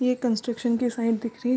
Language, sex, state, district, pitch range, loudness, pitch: Hindi, female, Bihar, Darbhanga, 230-245 Hz, -26 LUFS, 240 Hz